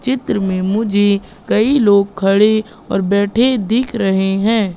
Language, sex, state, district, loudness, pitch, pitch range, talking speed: Hindi, female, Madhya Pradesh, Katni, -15 LUFS, 205 Hz, 195-225 Hz, 140 wpm